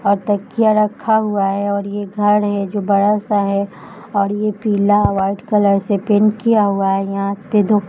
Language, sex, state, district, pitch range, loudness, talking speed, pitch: Hindi, female, Jharkhand, Jamtara, 200-210 Hz, -16 LUFS, 205 wpm, 205 Hz